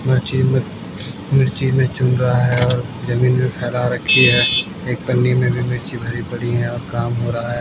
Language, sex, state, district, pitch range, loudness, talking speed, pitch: Hindi, male, Haryana, Jhajjar, 120-130 Hz, -17 LUFS, 205 wpm, 125 Hz